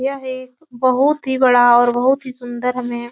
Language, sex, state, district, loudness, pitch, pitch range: Hindi, female, Uttar Pradesh, Etah, -16 LUFS, 255 Hz, 245-265 Hz